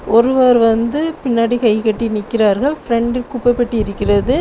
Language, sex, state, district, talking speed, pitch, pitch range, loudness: Tamil, female, Tamil Nadu, Kanyakumari, 120 wpm, 235 Hz, 220-250 Hz, -15 LUFS